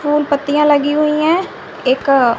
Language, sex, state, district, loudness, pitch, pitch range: Hindi, female, Haryana, Rohtak, -14 LUFS, 290 Hz, 275-300 Hz